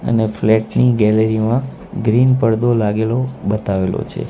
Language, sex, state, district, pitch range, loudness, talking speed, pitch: Gujarati, male, Gujarat, Gandhinagar, 105-120 Hz, -16 LUFS, 140 wpm, 110 Hz